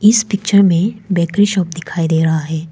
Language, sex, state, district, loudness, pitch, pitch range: Hindi, female, Arunachal Pradesh, Papum Pare, -15 LUFS, 185 Hz, 165-205 Hz